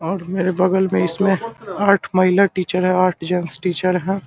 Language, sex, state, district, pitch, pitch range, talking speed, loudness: Hindi, male, Bihar, Samastipur, 185 Hz, 180-195 Hz, 185 wpm, -18 LUFS